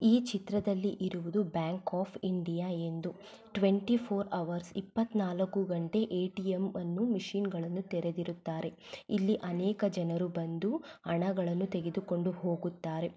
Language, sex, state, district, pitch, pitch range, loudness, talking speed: Kannada, female, Karnataka, Belgaum, 185 Hz, 175-200 Hz, -34 LUFS, 120 wpm